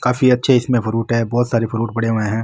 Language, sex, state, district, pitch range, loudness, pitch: Marwari, male, Rajasthan, Nagaur, 115-125 Hz, -17 LUFS, 115 Hz